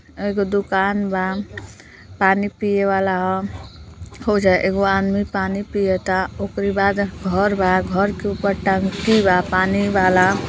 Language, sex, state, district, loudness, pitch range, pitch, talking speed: Bhojpuri, female, Uttar Pradesh, Deoria, -19 LUFS, 185-200 Hz, 195 Hz, 130 wpm